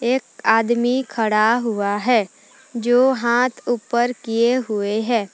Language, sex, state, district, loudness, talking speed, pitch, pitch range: Hindi, female, Jharkhand, Palamu, -19 LUFS, 135 wpm, 235 Hz, 220-245 Hz